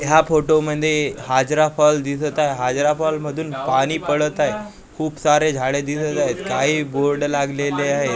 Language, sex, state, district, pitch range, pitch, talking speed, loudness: Marathi, male, Maharashtra, Gondia, 140-155 Hz, 150 Hz, 160 wpm, -19 LUFS